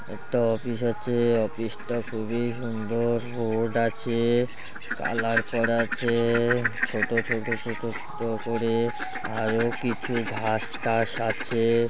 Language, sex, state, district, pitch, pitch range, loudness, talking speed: Bengali, male, West Bengal, Malda, 115 Hz, 115-120 Hz, -26 LUFS, 110 wpm